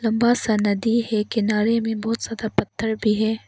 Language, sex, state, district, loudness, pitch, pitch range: Hindi, female, Arunachal Pradesh, Lower Dibang Valley, -22 LUFS, 220 Hz, 215-225 Hz